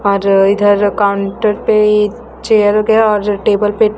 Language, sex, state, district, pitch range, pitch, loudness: Hindi, female, Chhattisgarh, Raipur, 200-215 Hz, 210 Hz, -12 LUFS